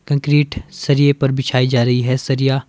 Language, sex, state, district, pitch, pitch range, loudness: Hindi, male, Himachal Pradesh, Shimla, 135 Hz, 125-145 Hz, -16 LUFS